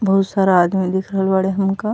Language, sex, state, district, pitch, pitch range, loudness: Bhojpuri, female, Uttar Pradesh, Ghazipur, 195 Hz, 190-195 Hz, -17 LUFS